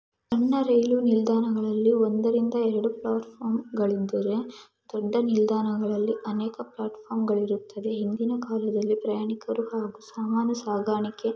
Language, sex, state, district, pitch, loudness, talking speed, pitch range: Kannada, female, Karnataka, Mysore, 220 Hz, -26 LUFS, 95 wpm, 215-230 Hz